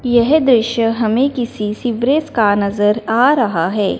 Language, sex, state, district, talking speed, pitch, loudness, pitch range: Hindi, male, Punjab, Fazilka, 150 wpm, 230 Hz, -15 LUFS, 210-255 Hz